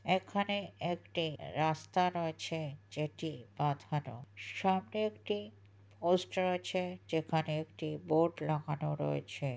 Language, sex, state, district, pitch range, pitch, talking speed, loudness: Bengali, male, West Bengal, North 24 Parganas, 135-180 Hz, 155 Hz, 90 wpm, -36 LUFS